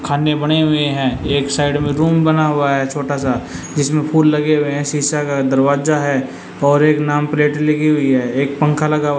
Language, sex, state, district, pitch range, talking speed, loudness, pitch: Hindi, male, Haryana, Jhajjar, 140-150 Hz, 215 wpm, -16 LUFS, 145 Hz